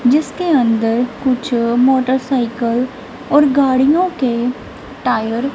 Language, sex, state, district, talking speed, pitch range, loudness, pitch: Hindi, female, Punjab, Kapurthala, 95 wpm, 240-275 Hz, -15 LUFS, 255 Hz